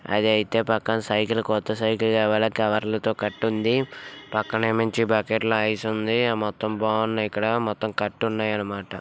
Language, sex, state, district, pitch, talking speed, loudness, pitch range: Telugu, male, Andhra Pradesh, Visakhapatnam, 110 Hz, 120 wpm, -24 LUFS, 105-110 Hz